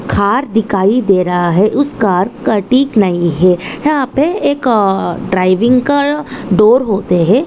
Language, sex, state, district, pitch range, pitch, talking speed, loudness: Hindi, female, Maharashtra, Nagpur, 190-260 Hz, 215 Hz, 145 wpm, -12 LUFS